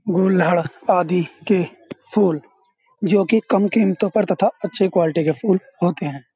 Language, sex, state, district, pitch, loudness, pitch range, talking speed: Hindi, male, Uttar Pradesh, Jyotiba Phule Nagar, 190 Hz, -19 LUFS, 175-205 Hz, 150 wpm